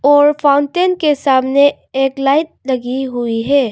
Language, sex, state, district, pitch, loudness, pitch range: Hindi, female, Arunachal Pradesh, Longding, 280 Hz, -14 LUFS, 265-290 Hz